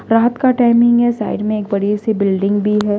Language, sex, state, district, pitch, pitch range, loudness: Hindi, female, Delhi, New Delhi, 215 Hz, 205-235 Hz, -15 LUFS